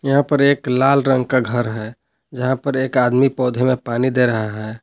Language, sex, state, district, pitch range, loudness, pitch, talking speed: Hindi, male, Jharkhand, Palamu, 120-135 Hz, -17 LUFS, 130 Hz, 225 wpm